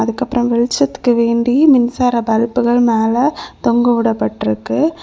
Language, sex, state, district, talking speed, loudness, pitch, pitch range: Tamil, female, Tamil Nadu, Kanyakumari, 85 wpm, -14 LUFS, 240 Hz, 235-260 Hz